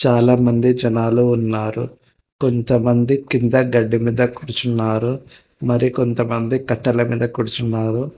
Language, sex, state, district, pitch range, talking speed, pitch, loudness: Telugu, male, Telangana, Hyderabad, 115-125 Hz, 110 wpm, 120 Hz, -17 LUFS